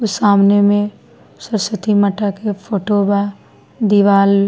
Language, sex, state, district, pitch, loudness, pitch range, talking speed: Bhojpuri, female, Bihar, East Champaran, 205 Hz, -15 LUFS, 200-210 Hz, 135 wpm